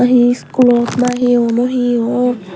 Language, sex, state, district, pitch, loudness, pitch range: Chakma, female, Tripura, West Tripura, 245 Hz, -13 LUFS, 240-250 Hz